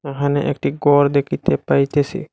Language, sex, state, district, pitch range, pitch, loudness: Bengali, male, Assam, Hailakandi, 140-145 Hz, 145 Hz, -18 LUFS